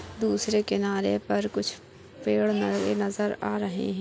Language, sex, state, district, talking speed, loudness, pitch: Hindi, female, Chhattisgarh, Bilaspur, 135 wpm, -27 LUFS, 105 Hz